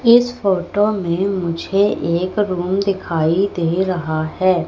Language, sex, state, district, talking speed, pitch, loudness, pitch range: Hindi, female, Madhya Pradesh, Katni, 130 wpm, 185 Hz, -18 LUFS, 170-200 Hz